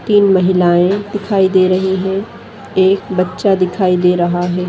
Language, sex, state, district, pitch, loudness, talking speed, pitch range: Hindi, female, Rajasthan, Nagaur, 190 Hz, -14 LUFS, 155 wpm, 180-195 Hz